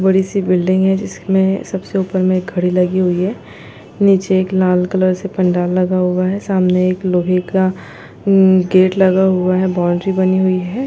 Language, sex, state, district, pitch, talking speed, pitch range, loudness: Hindi, female, Chhattisgarh, Bilaspur, 185 Hz, 180 wpm, 180-190 Hz, -15 LUFS